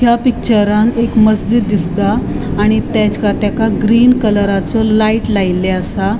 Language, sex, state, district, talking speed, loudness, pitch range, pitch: Konkani, female, Goa, North and South Goa, 125 wpm, -13 LUFS, 200-230 Hz, 215 Hz